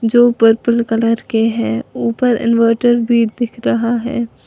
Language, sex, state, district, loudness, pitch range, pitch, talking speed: Hindi, female, Uttar Pradesh, Lalitpur, -15 LUFS, 230-235 Hz, 235 Hz, 150 wpm